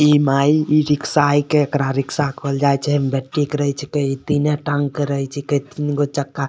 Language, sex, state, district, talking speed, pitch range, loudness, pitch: Maithili, male, Bihar, Supaul, 195 wpm, 140-150 Hz, -19 LUFS, 145 Hz